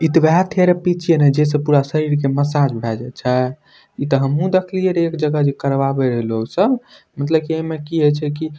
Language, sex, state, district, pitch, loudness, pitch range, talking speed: Maithili, male, Bihar, Madhepura, 150 Hz, -17 LUFS, 140-165 Hz, 215 wpm